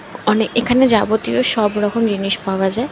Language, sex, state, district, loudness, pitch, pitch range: Bengali, female, West Bengal, North 24 Parganas, -16 LUFS, 215 Hz, 205-235 Hz